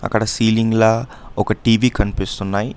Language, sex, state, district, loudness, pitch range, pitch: Telugu, male, Karnataka, Bangalore, -17 LUFS, 105-115 Hz, 110 Hz